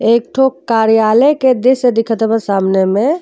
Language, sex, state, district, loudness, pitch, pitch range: Bhojpuri, female, Uttar Pradesh, Deoria, -12 LUFS, 230 Hz, 220-260 Hz